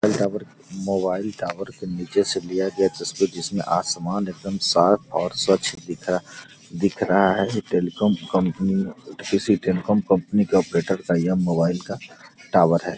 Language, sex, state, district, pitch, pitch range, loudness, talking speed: Hindi, male, Bihar, Gopalganj, 95 Hz, 90-100 Hz, -22 LUFS, 135 wpm